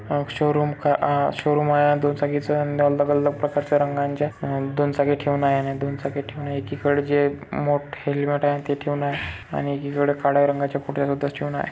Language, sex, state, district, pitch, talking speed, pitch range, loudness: Marathi, male, Maharashtra, Chandrapur, 145 Hz, 195 wpm, 140-145 Hz, -23 LUFS